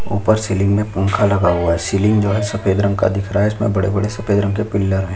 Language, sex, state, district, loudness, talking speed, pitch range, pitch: Hindi, male, Chhattisgarh, Sukma, -17 LUFS, 270 wpm, 95-105 Hz, 100 Hz